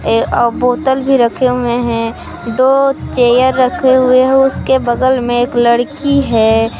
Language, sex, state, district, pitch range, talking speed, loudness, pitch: Hindi, female, Jharkhand, Palamu, 240-265 Hz, 130 wpm, -12 LUFS, 250 Hz